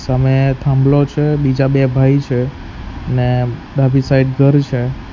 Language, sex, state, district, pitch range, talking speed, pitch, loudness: Gujarati, male, Gujarat, Valsad, 130-140 Hz, 140 wpm, 135 Hz, -14 LUFS